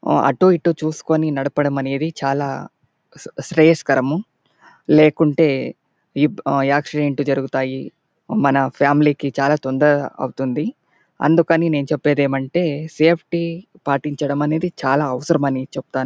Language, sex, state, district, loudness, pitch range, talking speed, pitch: Telugu, male, Andhra Pradesh, Chittoor, -18 LUFS, 135-160 Hz, 110 wpm, 145 Hz